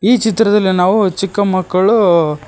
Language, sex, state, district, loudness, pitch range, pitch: Kannada, male, Karnataka, Koppal, -13 LUFS, 185-215 Hz, 195 Hz